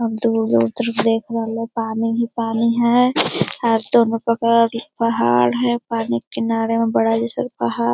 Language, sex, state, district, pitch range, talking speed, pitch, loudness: Hindi, female, Bihar, Lakhisarai, 220-230 Hz, 160 wpm, 230 Hz, -18 LUFS